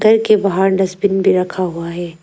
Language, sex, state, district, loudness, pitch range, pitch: Hindi, female, Arunachal Pradesh, Lower Dibang Valley, -15 LUFS, 180-200 Hz, 190 Hz